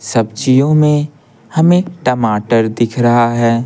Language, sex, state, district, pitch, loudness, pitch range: Hindi, male, Bihar, Patna, 120 Hz, -13 LUFS, 115-150 Hz